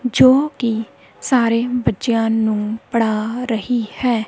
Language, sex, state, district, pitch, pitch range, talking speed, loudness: Punjabi, female, Punjab, Kapurthala, 230 Hz, 220-250 Hz, 110 wpm, -18 LUFS